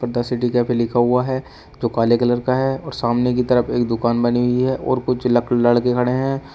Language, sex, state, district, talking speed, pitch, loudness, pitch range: Hindi, male, Uttar Pradesh, Shamli, 245 wpm, 125 Hz, -19 LUFS, 120-125 Hz